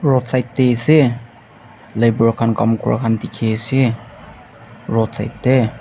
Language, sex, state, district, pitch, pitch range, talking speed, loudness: Nagamese, male, Nagaland, Dimapur, 115 Hz, 115-125 Hz, 125 wpm, -17 LUFS